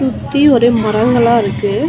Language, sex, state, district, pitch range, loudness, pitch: Tamil, female, Tamil Nadu, Chennai, 225-260 Hz, -12 LUFS, 240 Hz